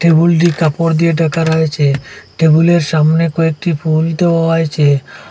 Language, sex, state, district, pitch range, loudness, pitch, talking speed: Bengali, male, Assam, Hailakandi, 155-165 Hz, -13 LUFS, 165 Hz, 125 wpm